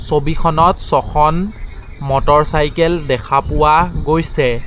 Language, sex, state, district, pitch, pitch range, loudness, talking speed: Assamese, male, Assam, Sonitpur, 150 Hz, 145-165 Hz, -14 LUFS, 75 wpm